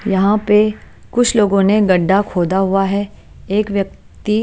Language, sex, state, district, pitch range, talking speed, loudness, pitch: Hindi, female, Chandigarh, Chandigarh, 195-210 Hz, 165 wpm, -15 LUFS, 200 Hz